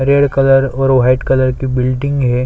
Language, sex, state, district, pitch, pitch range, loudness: Hindi, male, Chhattisgarh, Sukma, 130 Hz, 130-135 Hz, -13 LUFS